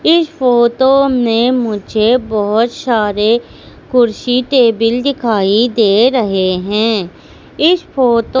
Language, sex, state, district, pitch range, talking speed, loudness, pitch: Hindi, female, Madhya Pradesh, Katni, 215-255 Hz, 105 wpm, -13 LUFS, 235 Hz